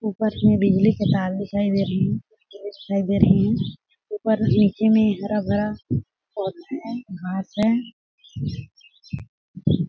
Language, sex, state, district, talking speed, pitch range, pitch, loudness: Hindi, female, Chhattisgarh, Sarguja, 105 wpm, 195-215 Hz, 205 Hz, -22 LUFS